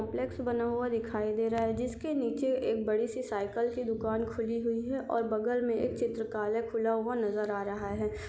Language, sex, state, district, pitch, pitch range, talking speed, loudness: Hindi, female, Chhattisgarh, Sarguja, 230 Hz, 220-240 Hz, 210 wpm, -32 LUFS